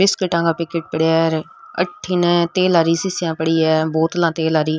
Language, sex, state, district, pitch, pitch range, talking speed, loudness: Rajasthani, female, Rajasthan, Nagaur, 165 Hz, 160-175 Hz, 160 wpm, -18 LUFS